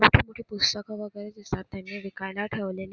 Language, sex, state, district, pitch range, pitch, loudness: Marathi, female, Maharashtra, Solapur, 195-210 Hz, 205 Hz, -29 LUFS